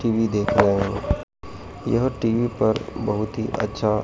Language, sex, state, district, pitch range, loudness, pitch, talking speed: Hindi, male, Madhya Pradesh, Dhar, 100-115 Hz, -23 LUFS, 110 Hz, 150 wpm